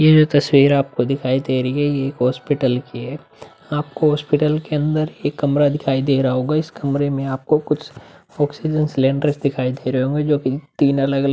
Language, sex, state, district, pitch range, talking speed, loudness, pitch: Hindi, male, Uttar Pradesh, Budaun, 135-150 Hz, 205 wpm, -19 LUFS, 140 Hz